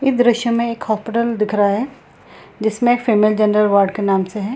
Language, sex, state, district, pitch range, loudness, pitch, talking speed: Hindi, female, Bihar, Samastipur, 210-235 Hz, -17 LUFS, 220 Hz, 210 wpm